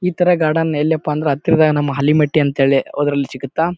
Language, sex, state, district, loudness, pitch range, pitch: Kannada, male, Karnataka, Bijapur, -16 LUFS, 140-160 Hz, 150 Hz